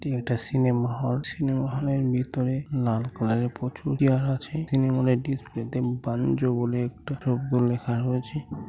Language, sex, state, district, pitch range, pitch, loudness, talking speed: Bengali, male, West Bengal, North 24 Parganas, 120-135 Hz, 125 Hz, -26 LUFS, 160 wpm